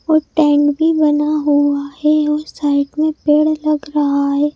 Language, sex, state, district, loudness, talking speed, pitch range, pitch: Hindi, female, Madhya Pradesh, Bhopal, -15 LUFS, 170 wpm, 290-305 Hz, 295 Hz